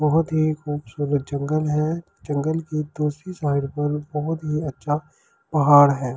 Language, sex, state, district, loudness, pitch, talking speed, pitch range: Hindi, male, Delhi, New Delhi, -22 LUFS, 150 Hz, 145 wpm, 145-155 Hz